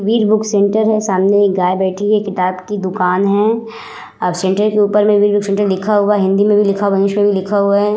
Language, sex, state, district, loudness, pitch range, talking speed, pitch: Hindi, female, Uttar Pradesh, Muzaffarnagar, -14 LUFS, 190-210 Hz, 240 wpm, 205 Hz